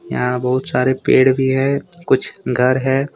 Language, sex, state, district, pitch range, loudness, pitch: Hindi, male, Jharkhand, Deoghar, 125-135 Hz, -16 LUFS, 130 Hz